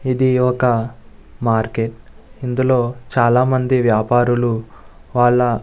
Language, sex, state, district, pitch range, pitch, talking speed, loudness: Telugu, male, Andhra Pradesh, Visakhapatnam, 115-130 Hz, 120 Hz, 95 wpm, -17 LUFS